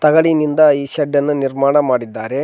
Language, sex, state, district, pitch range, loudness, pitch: Kannada, male, Karnataka, Koppal, 140-155 Hz, -15 LUFS, 145 Hz